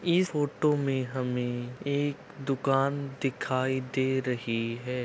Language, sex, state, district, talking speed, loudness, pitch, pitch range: Hindi, male, Uttar Pradesh, Budaun, 105 wpm, -29 LUFS, 130 Hz, 125-140 Hz